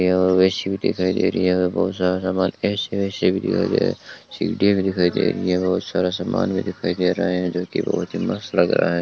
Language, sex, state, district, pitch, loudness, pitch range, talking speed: Hindi, male, Rajasthan, Bikaner, 90 Hz, -21 LUFS, 90-95 Hz, 270 wpm